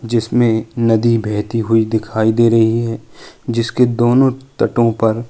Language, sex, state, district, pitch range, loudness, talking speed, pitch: Hindi, male, Uttar Pradesh, Jalaun, 110-120 Hz, -15 LUFS, 145 wpm, 115 Hz